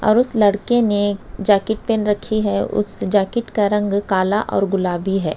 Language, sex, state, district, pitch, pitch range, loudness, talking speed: Hindi, female, Uttar Pradesh, Budaun, 205 Hz, 195-215 Hz, -17 LUFS, 180 wpm